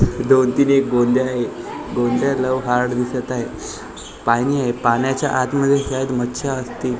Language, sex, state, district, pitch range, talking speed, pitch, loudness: Marathi, male, Maharashtra, Gondia, 125-135 Hz, 155 wpm, 130 Hz, -19 LUFS